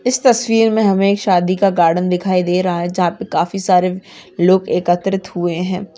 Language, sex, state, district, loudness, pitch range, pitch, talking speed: Hindi, female, Chhattisgarh, Raigarh, -15 LUFS, 180-195 Hz, 185 Hz, 200 wpm